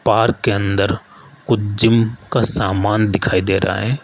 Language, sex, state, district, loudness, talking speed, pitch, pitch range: Hindi, male, Rajasthan, Jaipur, -16 LUFS, 165 wpm, 105 Hz, 100-115 Hz